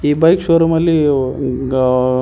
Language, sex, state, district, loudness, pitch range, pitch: Kannada, male, Karnataka, Koppal, -14 LUFS, 130-165 Hz, 145 Hz